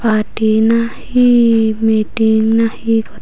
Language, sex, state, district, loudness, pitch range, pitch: Chakma, female, Tripura, Unakoti, -13 LUFS, 220-230 Hz, 225 Hz